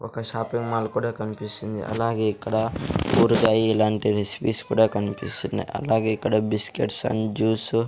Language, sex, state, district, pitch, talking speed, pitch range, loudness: Telugu, male, Andhra Pradesh, Sri Satya Sai, 110 Hz, 135 wpm, 105-115 Hz, -24 LUFS